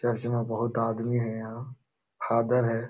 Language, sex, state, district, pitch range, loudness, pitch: Hindi, male, Uttar Pradesh, Jalaun, 115-120 Hz, -28 LUFS, 115 Hz